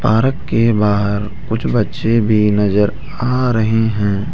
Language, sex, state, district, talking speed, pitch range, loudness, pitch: Hindi, male, Rajasthan, Jaipur, 140 wpm, 105-115 Hz, -16 LUFS, 110 Hz